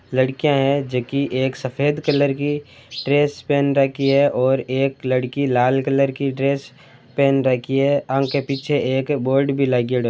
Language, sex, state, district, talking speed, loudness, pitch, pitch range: Marwari, male, Rajasthan, Churu, 165 wpm, -19 LUFS, 135 Hz, 130-140 Hz